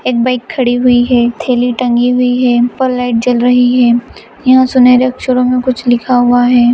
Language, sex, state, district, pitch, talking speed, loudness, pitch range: Hindi, female, Bihar, Vaishali, 250 Hz, 185 wpm, -10 LUFS, 245-250 Hz